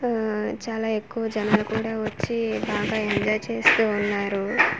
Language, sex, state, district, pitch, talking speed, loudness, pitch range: Telugu, female, Andhra Pradesh, Manyam, 215 Hz, 125 wpm, -24 LUFS, 205-225 Hz